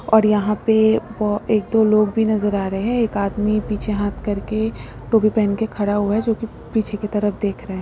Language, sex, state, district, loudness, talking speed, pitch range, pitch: Hindi, female, West Bengal, Purulia, -19 LUFS, 240 wpm, 205-220 Hz, 215 Hz